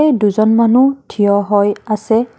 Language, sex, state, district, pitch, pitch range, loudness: Assamese, female, Assam, Kamrup Metropolitan, 220 Hz, 205-240 Hz, -13 LUFS